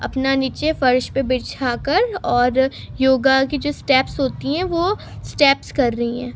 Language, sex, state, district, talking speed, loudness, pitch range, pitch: Hindi, female, Uttar Pradesh, Gorakhpur, 160 wpm, -19 LUFS, 255-290 Hz, 265 Hz